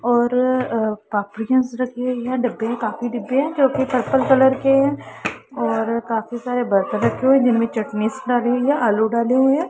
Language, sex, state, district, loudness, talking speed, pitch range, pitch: Hindi, female, Punjab, Pathankot, -19 LUFS, 185 wpm, 225-260 Hz, 245 Hz